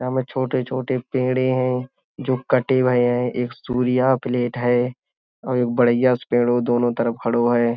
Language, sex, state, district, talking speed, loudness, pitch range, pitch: Hindi, male, Uttar Pradesh, Budaun, 155 wpm, -20 LUFS, 120-130 Hz, 125 Hz